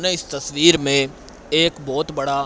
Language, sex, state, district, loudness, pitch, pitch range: Hindi, male, Haryana, Rohtak, -19 LUFS, 145 Hz, 140-165 Hz